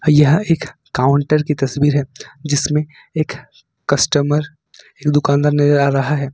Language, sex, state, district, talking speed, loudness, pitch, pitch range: Hindi, male, Jharkhand, Ranchi, 130 wpm, -16 LUFS, 145 Hz, 140-150 Hz